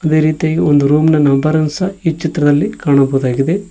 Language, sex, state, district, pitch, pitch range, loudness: Kannada, male, Karnataka, Koppal, 155 Hz, 145-165 Hz, -13 LUFS